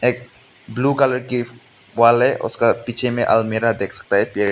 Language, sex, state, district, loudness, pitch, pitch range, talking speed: Hindi, male, Meghalaya, West Garo Hills, -18 LUFS, 120 Hz, 115-125 Hz, 200 wpm